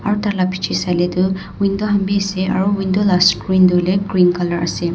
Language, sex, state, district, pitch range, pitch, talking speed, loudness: Nagamese, female, Nagaland, Dimapur, 180-195 Hz, 185 Hz, 240 wpm, -16 LUFS